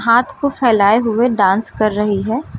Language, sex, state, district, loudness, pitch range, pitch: Hindi, female, Uttar Pradesh, Lucknow, -15 LUFS, 210-245 Hz, 225 Hz